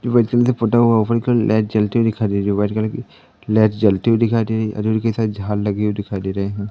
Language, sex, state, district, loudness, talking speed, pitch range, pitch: Hindi, male, Madhya Pradesh, Katni, -18 LUFS, 260 wpm, 105-115 Hz, 110 Hz